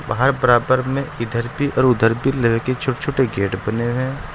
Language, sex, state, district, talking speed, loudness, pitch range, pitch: Hindi, male, Uttar Pradesh, Saharanpur, 205 wpm, -19 LUFS, 115-135 Hz, 130 Hz